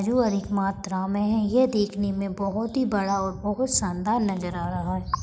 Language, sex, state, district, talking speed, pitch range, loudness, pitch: Hindi, female, Uttarakhand, Tehri Garhwal, 205 wpm, 195-220 Hz, -25 LUFS, 200 Hz